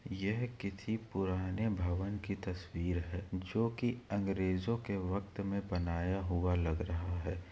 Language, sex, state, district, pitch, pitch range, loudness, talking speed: Hindi, male, Chhattisgarh, Korba, 95 Hz, 90-100 Hz, -37 LUFS, 145 wpm